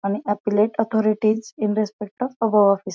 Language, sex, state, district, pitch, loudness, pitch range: Marathi, female, Maharashtra, Aurangabad, 215 Hz, -21 LUFS, 205-220 Hz